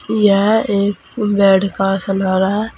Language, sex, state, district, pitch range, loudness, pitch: Hindi, female, Uttar Pradesh, Saharanpur, 195-210 Hz, -15 LUFS, 200 Hz